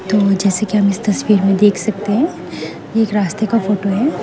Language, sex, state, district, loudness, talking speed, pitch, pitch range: Hindi, female, Meghalaya, West Garo Hills, -15 LUFS, 215 wpm, 205 Hz, 200-215 Hz